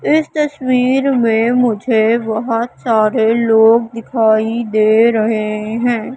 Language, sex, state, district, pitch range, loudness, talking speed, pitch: Hindi, female, Madhya Pradesh, Katni, 220-245 Hz, -14 LUFS, 105 wpm, 230 Hz